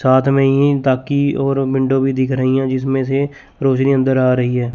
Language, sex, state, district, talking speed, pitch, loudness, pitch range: Hindi, male, Chandigarh, Chandigarh, 215 wpm, 135 Hz, -16 LUFS, 130-135 Hz